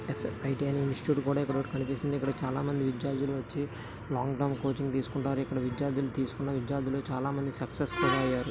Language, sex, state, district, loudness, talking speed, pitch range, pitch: Telugu, male, Karnataka, Dharwad, -32 LUFS, 140 wpm, 130-140 Hz, 135 Hz